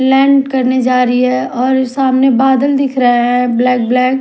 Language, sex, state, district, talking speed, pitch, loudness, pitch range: Hindi, female, Odisha, Nuapada, 200 wpm, 255 Hz, -12 LUFS, 250-265 Hz